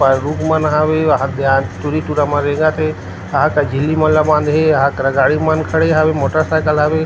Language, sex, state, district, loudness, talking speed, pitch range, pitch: Chhattisgarhi, male, Chhattisgarh, Rajnandgaon, -15 LUFS, 220 wpm, 140-155 Hz, 150 Hz